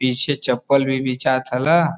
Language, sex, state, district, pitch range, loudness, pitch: Bhojpuri, male, Uttar Pradesh, Varanasi, 130-145 Hz, -19 LUFS, 135 Hz